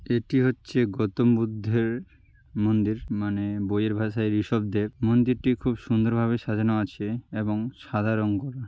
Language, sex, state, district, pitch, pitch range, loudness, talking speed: Bengali, male, West Bengal, Malda, 110 Hz, 105-120 Hz, -26 LUFS, 145 wpm